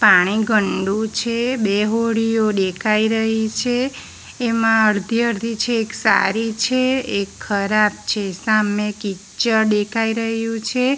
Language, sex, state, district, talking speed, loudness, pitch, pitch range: Gujarati, female, Gujarat, Valsad, 125 wpm, -19 LUFS, 220 Hz, 210-230 Hz